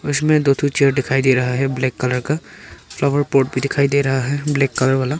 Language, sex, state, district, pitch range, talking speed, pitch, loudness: Hindi, male, Arunachal Pradesh, Papum Pare, 130-145 Hz, 240 wpm, 135 Hz, -18 LUFS